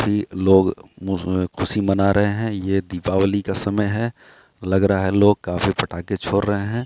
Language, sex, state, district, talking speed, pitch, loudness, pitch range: Hindi, male, Bihar, Katihar, 185 wpm, 100 Hz, -20 LUFS, 95-105 Hz